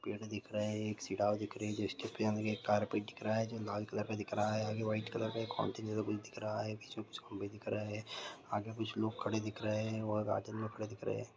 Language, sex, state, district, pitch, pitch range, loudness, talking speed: Maithili, male, Bihar, Supaul, 105 Hz, 105-110 Hz, -39 LUFS, 215 wpm